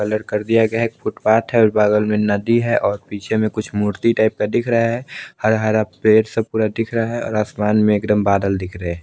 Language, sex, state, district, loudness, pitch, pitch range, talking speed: Hindi, male, Chandigarh, Chandigarh, -18 LUFS, 110 Hz, 105-115 Hz, 260 wpm